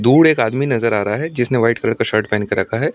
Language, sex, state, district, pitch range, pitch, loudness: Hindi, male, Delhi, New Delhi, 110-135 Hz, 115 Hz, -16 LUFS